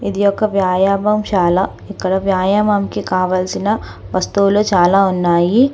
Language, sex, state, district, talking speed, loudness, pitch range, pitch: Telugu, female, Telangana, Hyderabad, 95 wpm, -15 LUFS, 185-205 Hz, 195 Hz